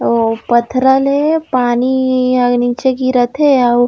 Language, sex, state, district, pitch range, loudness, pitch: Chhattisgarhi, female, Chhattisgarh, Raigarh, 245-260 Hz, -13 LUFS, 255 Hz